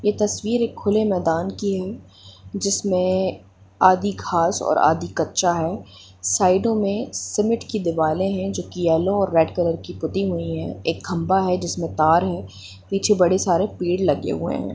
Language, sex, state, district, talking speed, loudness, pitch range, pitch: Hindi, female, Jharkhand, Jamtara, 175 wpm, -21 LUFS, 165-200 Hz, 185 Hz